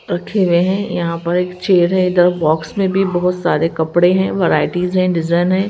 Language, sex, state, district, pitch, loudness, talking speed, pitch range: Hindi, female, Haryana, Rohtak, 180 Hz, -15 LUFS, 210 wpm, 170-185 Hz